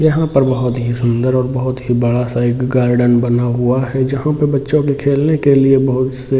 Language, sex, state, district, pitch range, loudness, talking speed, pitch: Hindi, male, Jharkhand, Jamtara, 120-140 Hz, -15 LUFS, 235 wpm, 130 Hz